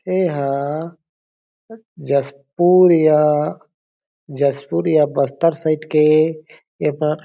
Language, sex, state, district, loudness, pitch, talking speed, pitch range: Chhattisgarhi, male, Chhattisgarh, Jashpur, -17 LUFS, 155 Hz, 85 wpm, 145-165 Hz